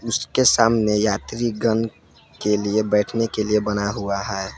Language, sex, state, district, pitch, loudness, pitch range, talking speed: Hindi, male, Jharkhand, Palamu, 105 Hz, -21 LUFS, 100-115 Hz, 145 wpm